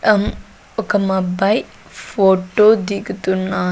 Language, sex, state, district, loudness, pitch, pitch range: Telugu, female, Andhra Pradesh, Sri Satya Sai, -17 LUFS, 200 Hz, 190-210 Hz